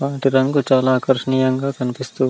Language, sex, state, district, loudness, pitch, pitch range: Telugu, male, Andhra Pradesh, Anantapur, -18 LUFS, 130 Hz, 130-135 Hz